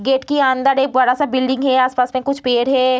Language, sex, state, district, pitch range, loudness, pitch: Hindi, female, Bihar, Kishanganj, 255-270 Hz, -16 LUFS, 260 Hz